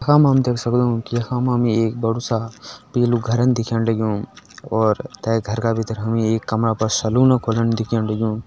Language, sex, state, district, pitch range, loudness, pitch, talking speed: Hindi, male, Uttarakhand, Tehri Garhwal, 110-120 Hz, -19 LUFS, 115 Hz, 205 wpm